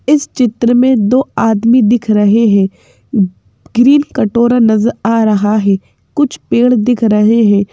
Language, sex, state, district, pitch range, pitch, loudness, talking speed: Hindi, female, Madhya Pradesh, Bhopal, 210-245 Hz, 230 Hz, -11 LUFS, 145 wpm